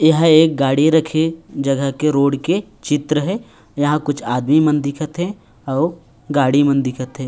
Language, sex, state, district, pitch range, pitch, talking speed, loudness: Chhattisgarhi, male, Chhattisgarh, Raigarh, 140-160 Hz, 150 Hz, 175 wpm, -17 LUFS